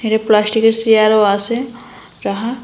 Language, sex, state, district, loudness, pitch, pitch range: Bengali, female, Assam, Hailakandi, -14 LUFS, 225 Hz, 215-235 Hz